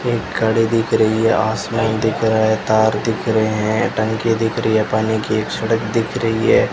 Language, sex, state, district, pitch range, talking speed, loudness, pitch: Hindi, male, Rajasthan, Bikaner, 110-115 Hz, 215 wpm, -17 LUFS, 110 Hz